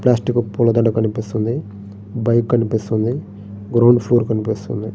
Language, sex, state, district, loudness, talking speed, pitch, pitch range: Telugu, male, Andhra Pradesh, Srikakulam, -18 LUFS, 95 wpm, 115 Hz, 105-120 Hz